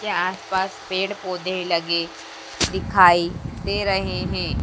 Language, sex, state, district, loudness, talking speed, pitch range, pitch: Hindi, female, Madhya Pradesh, Dhar, -22 LUFS, 115 wpm, 175-190 Hz, 185 Hz